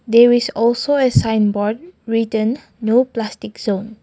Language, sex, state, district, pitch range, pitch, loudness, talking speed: English, female, Nagaland, Kohima, 220-245 Hz, 225 Hz, -17 LUFS, 150 wpm